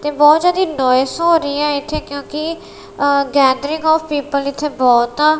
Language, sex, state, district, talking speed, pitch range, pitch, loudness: Punjabi, female, Punjab, Kapurthala, 180 wpm, 280-310 Hz, 295 Hz, -15 LUFS